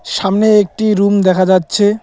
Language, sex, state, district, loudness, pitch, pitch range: Bengali, male, West Bengal, Cooch Behar, -12 LUFS, 205 Hz, 190-210 Hz